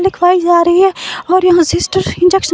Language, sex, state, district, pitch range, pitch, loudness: Hindi, female, Himachal Pradesh, Shimla, 350-375 Hz, 360 Hz, -11 LUFS